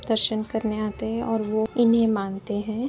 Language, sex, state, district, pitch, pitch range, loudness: Hindi, female, Uttar Pradesh, Etah, 220 Hz, 215-225 Hz, -24 LUFS